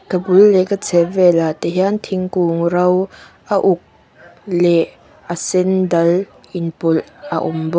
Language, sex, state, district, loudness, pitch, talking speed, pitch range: Mizo, female, Mizoram, Aizawl, -16 LUFS, 180 Hz, 160 wpm, 170-190 Hz